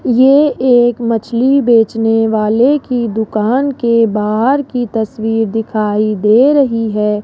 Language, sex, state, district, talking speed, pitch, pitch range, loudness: Hindi, female, Rajasthan, Jaipur, 125 wpm, 230 Hz, 220-255 Hz, -12 LUFS